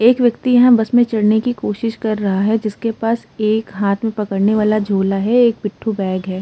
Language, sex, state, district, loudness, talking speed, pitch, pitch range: Hindi, female, Uttar Pradesh, Muzaffarnagar, -16 LUFS, 225 wpm, 215 Hz, 205-230 Hz